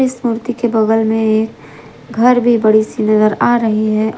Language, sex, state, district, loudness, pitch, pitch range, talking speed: Hindi, female, Jharkhand, Ranchi, -13 LUFS, 225 Hz, 215-240 Hz, 200 wpm